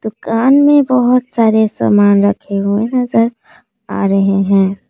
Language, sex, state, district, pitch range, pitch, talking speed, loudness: Hindi, female, Assam, Kamrup Metropolitan, 200-245 Hz, 220 Hz, 135 wpm, -12 LUFS